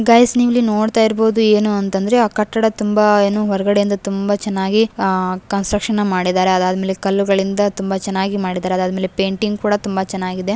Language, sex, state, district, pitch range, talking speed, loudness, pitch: Kannada, female, Karnataka, Gulbarga, 190-215 Hz, 170 wpm, -16 LUFS, 200 Hz